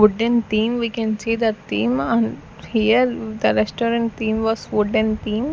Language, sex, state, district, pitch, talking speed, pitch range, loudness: English, female, Chandigarh, Chandigarh, 225 Hz, 175 wpm, 215-235 Hz, -20 LUFS